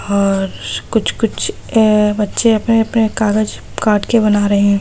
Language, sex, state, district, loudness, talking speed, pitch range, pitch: Hindi, female, Bihar, Araria, -15 LUFS, 160 wpm, 200-220 Hz, 210 Hz